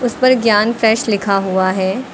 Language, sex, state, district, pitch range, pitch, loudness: Hindi, female, Uttar Pradesh, Lucknow, 195-245 Hz, 220 Hz, -14 LUFS